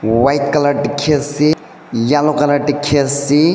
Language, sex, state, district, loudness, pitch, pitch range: Nagamese, male, Nagaland, Dimapur, -15 LUFS, 145 Hz, 140-150 Hz